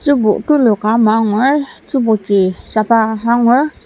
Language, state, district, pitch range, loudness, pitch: Ao, Nagaland, Dimapur, 215-265 Hz, -13 LUFS, 225 Hz